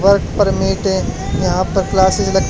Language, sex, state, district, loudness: Hindi, male, Haryana, Charkhi Dadri, -16 LUFS